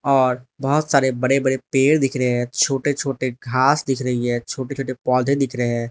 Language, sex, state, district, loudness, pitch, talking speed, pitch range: Hindi, male, Arunachal Pradesh, Lower Dibang Valley, -20 LUFS, 130 Hz, 215 wpm, 125-135 Hz